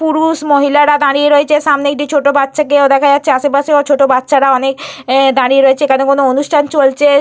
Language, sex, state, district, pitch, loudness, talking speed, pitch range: Bengali, female, Jharkhand, Jamtara, 285 Hz, -10 LUFS, 165 wpm, 275-290 Hz